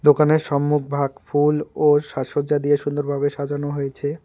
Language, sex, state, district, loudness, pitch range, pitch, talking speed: Bengali, male, West Bengal, Alipurduar, -21 LUFS, 145-150 Hz, 145 Hz, 140 wpm